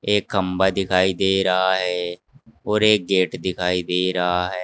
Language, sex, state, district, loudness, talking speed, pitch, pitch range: Hindi, male, Uttar Pradesh, Saharanpur, -20 LUFS, 170 wpm, 95 Hz, 90-95 Hz